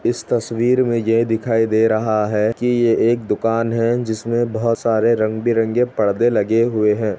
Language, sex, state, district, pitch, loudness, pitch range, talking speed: Hindi, male, Chhattisgarh, Bastar, 115 Hz, -18 LUFS, 110-120 Hz, 175 wpm